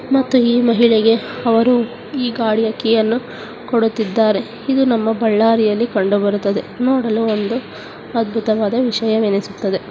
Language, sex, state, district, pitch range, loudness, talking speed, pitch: Kannada, female, Karnataka, Bellary, 215-240 Hz, -16 LUFS, 105 wpm, 225 Hz